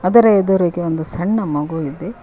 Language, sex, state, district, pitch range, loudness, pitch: Kannada, female, Karnataka, Koppal, 160-195 Hz, -17 LUFS, 175 Hz